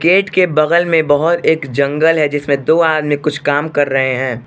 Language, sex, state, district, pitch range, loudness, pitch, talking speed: Hindi, male, Arunachal Pradesh, Lower Dibang Valley, 140-165 Hz, -14 LUFS, 150 Hz, 215 wpm